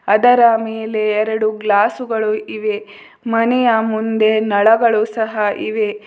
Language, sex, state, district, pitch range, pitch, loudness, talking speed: Kannada, female, Karnataka, Bidar, 215-225 Hz, 220 Hz, -16 LUFS, 100 wpm